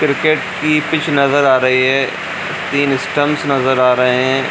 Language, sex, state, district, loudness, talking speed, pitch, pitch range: Hindi, male, Bihar, Jamui, -14 LUFS, 170 wpm, 140 Hz, 130-150 Hz